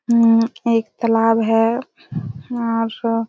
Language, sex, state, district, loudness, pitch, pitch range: Hindi, female, Chhattisgarh, Raigarh, -18 LUFS, 230 Hz, 225-235 Hz